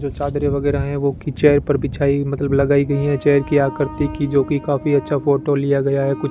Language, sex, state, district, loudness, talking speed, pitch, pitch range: Hindi, male, Rajasthan, Bikaner, -18 LUFS, 245 wpm, 140 Hz, 140-145 Hz